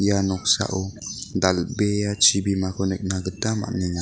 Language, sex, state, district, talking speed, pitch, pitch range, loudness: Garo, male, Meghalaya, West Garo Hills, 105 wpm, 95 Hz, 95-105 Hz, -22 LUFS